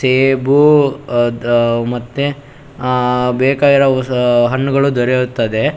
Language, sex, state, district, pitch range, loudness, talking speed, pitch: Kannada, male, Karnataka, Shimoga, 120-140 Hz, -14 LUFS, 75 wpm, 130 Hz